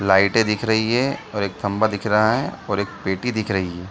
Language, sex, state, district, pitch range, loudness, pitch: Hindi, male, Bihar, Gaya, 100-110 Hz, -21 LUFS, 105 Hz